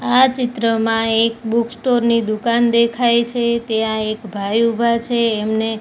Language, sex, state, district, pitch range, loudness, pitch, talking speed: Gujarati, female, Gujarat, Gandhinagar, 225-235 Hz, -17 LUFS, 230 Hz, 155 wpm